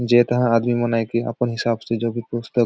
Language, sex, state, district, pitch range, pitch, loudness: Sadri, male, Chhattisgarh, Jashpur, 115-120 Hz, 120 Hz, -21 LUFS